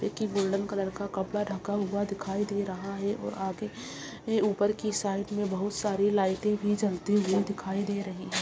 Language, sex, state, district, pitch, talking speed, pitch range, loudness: Hindi, female, Bihar, Saharsa, 200 Hz, 200 wpm, 195-205 Hz, -30 LUFS